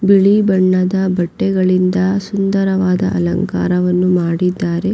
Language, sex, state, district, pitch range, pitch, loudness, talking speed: Kannada, female, Karnataka, Raichur, 180-195 Hz, 185 Hz, -15 LUFS, 75 wpm